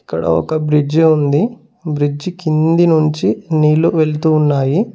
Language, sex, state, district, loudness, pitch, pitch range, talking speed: Telugu, male, Telangana, Mahabubabad, -14 LUFS, 155 Hz, 150-170 Hz, 120 wpm